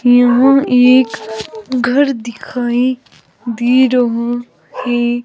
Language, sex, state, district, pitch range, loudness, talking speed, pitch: Hindi, female, Himachal Pradesh, Shimla, 240-255 Hz, -13 LUFS, 80 wpm, 245 Hz